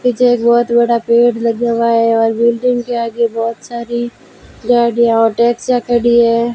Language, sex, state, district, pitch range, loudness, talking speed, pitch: Hindi, female, Rajasthan, Bikaner, 230-240 Hz, -13 LUFS, 175 wpm, 235 Hz